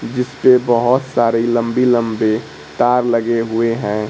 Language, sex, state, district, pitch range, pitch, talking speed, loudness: Hindi, male, Bihar, Kaimur, 115-125 Hz, 120 Hz, 145 wpm, -16 LUFS